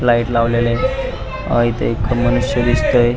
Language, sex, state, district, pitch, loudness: Marathi, male, Maharashtra, Pune, 120 Hz, -17 LUFS